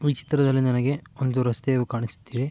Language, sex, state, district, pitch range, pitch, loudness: Kannada, male, Karnataka, Mysore, 125-140 Hz, 130 Hz, -24 LUFS